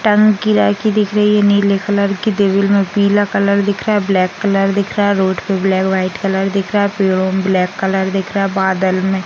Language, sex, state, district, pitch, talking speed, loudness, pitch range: Hindi, female, Bihar, Vaishali, 200 Hz, 240 wpm, -14 LUFS, 190-205 Hz